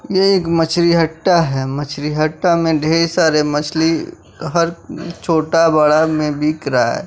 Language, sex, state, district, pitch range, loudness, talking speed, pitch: Hindi, male, Bihar, West Champaran, 150-170 Hz, -16 LUFS, 145 wpm, 160 Hz